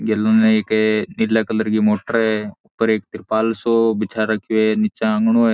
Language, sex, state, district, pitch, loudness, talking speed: Marwari, male, Rajasthan, Churu, 110 Hz, -18 LUFS, 195 wpm